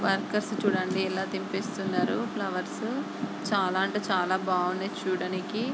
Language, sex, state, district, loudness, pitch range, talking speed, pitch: Telugu, female, Andhra Pradesh, Guntur, -29 LUFS, 185-205 Hz, 105 wpm, 190 Hz